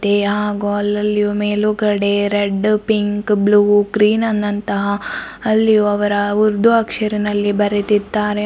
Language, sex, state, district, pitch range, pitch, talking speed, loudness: Kannada, female, Karnataka, Bidar, 205-210 Hz, 205 Hz, 100 wpm, -16 LUFS